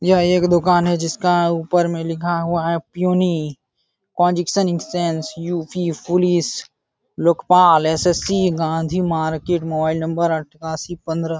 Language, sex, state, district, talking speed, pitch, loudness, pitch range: Hindi, male, Uttar Pradesh, Jalaun, 110 wpm, 170 Hz, -19 LUFS, 160-175 Hz